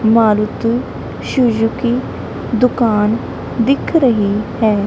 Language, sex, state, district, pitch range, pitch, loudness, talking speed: Punjabi, female, Punjab, Kapurthala, 215-245 Hz, 230 Hz, -16 LUFS, 75 wpm